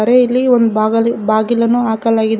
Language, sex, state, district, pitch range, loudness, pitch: Kannada, female, Karnataka, Koppal, 220-240 Hz, -13 LUFS, 230 Hz